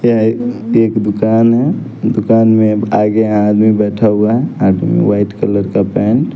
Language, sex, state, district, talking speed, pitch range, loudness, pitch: Hindi, male, Bihar, West Champaran, 180 wpm, 105-115 Hz, -12 LUFS, 110 Hz